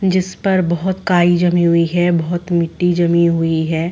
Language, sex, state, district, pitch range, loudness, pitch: Hindi, female, Chhattisgarh, Rajnandgaon, 170-180 Hz, -15 LUFS, 175 Hz